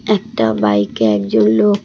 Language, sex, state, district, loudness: Bengali, female, West Bengal, Cooch Behar, -15 LUFS